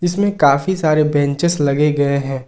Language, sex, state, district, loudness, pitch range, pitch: Hindi, male, Jharkhand, Ranchi, -16 LUFS, 140-170 Hz, 150 Hz